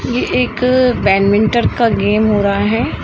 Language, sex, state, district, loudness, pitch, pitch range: Hindi, female, Uttar Pradesh, Shamli, -14 LUFS, 215 Hz, 200-235 Hz